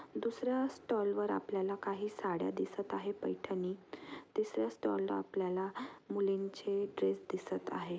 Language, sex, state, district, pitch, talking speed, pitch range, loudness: Marathi, female, Maharashtra, Aurangabad, 195 Hz, 130 wpm, 180-205 Hz, -38 LUFS